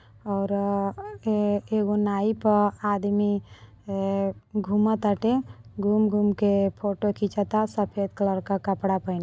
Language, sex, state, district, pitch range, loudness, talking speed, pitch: Bhojpuri, female, Uttar Pradesh, Deoria, 195-210 Hz, -25 LUFS, 135 wpm, 205 Hz